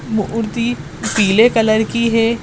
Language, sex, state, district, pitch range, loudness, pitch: Hindi, female, Maharashtra, Sindhudurg, 220-230 Hz, -15 LUFS, 225 Hz